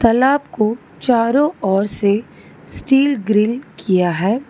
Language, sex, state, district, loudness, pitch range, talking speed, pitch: Hindi, female, Telangana, Hyderabad, -17 LUFS, 205-270 Hz, 120 wpm, 230 Hz